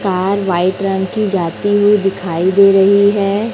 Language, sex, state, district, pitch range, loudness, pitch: Hindi, female, Chhattisgarh, Raipur, 190-205 Hz, -13 LUFS, 195 Hz